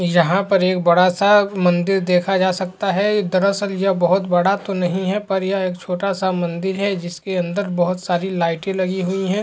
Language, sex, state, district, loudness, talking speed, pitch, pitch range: Hindi, male, Uttar Pradesh, Hamirpur, -18 LUFS, 205 wpm, 185 Hz, 180-195 Hz